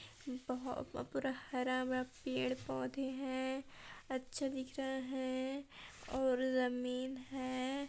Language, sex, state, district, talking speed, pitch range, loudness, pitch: Hindi, female, Chhattisgarh, Balrampur, 90 wpm, 255-265 Hz, -40 LUFS, 260 Hz